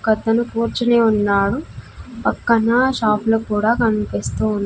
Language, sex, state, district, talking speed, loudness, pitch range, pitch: Telugu, female, Andhra Pradesh, Sri Satya Sai, 105 wpm, -18 LUFS, 210-235 Hz, 225 Hz